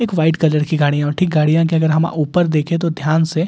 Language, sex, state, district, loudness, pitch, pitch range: Hindi, male, Delhi, New Delhi, -16 LUFS, 160 Hz, 155-165 Hz